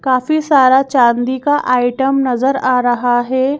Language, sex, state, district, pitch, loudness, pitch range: Hindi, female, Madhya Pradesh, Bhopal, 260 Hz, -13 LUFS, 250-275 Hz